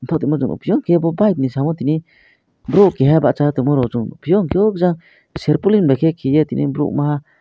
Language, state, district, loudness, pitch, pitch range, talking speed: Kokborok, Tripura, West Tripura, -16 LUFS, 150 Hz, 140-170 Hz, 170 wpm